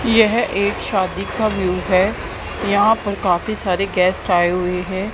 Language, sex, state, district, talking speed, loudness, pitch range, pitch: Hindi, female, Haryana, Jhajjar, 165 wpm, -18 LUFS, 180-210 Hz, 195 Hz